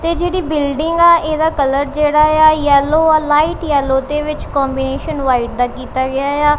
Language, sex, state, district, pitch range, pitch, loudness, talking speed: Punjabi, female, Punjab, Kapurthala, 275-310 Hz, 295 Hz, -14 LUFS, 200 wpm